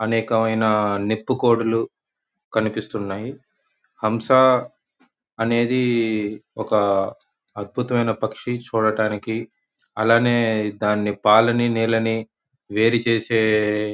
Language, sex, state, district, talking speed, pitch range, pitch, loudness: Telugu, male, Andhra Pradesh, Guntur, 70 wpm, 105-115 Hz, 110 Hz, -21 LUFS